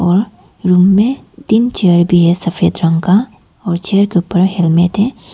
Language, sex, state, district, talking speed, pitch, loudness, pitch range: Hindi, female, Arunachal Pradesh, Papum Pare, 180 wpm, 185 Hz, -12 LUFS, 175-210 Hz